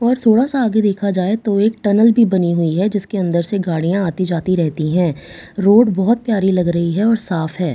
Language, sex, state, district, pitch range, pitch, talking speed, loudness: Hindi, female, Bihar, Katihar, 175-220 Hz, 195 Hz, 225 wpm, -16 LUFS